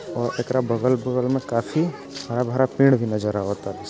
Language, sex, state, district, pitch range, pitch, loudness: Bhojpuri, male, Bihar, Gopalganj, 115-130 Hz, 125 Hz, -22 LUFS